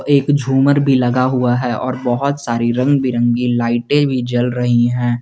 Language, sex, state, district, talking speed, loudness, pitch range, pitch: Hindi, male, Jharkhand, Garhwa, 185 wpm, -15 LUFS, 120-135 Hz, 125 Hz